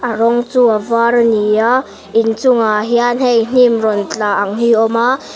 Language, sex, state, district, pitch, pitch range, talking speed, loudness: Mizo, female, Mizoram, Aizawl, 230 Hz, 215-245 Hz, 235 wpm, -13 LUFS